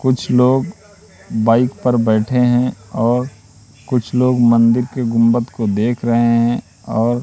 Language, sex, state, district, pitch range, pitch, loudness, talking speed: Hindi, male, Madhya Pradesh, Katni, 115-125 Hz, 120 Hz, -16 LUFS, 140 wpm